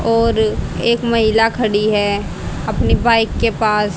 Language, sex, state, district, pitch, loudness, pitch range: Hindi, female, Haryana, Rohtak, 225 Hz, -16 LUFS, 210-230 Hz